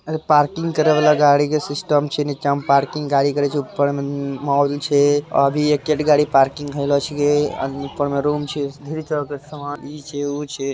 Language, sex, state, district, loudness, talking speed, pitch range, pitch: Hindi, male, Bihar, Araria, -19 LUFS, 130 wpm, 140-150 Hz, 145 Hz